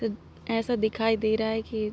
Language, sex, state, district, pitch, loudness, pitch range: Hindi, female, Jharkhand, Sahebganj, 220 Hz, -27 LUFS, 220-225 Hz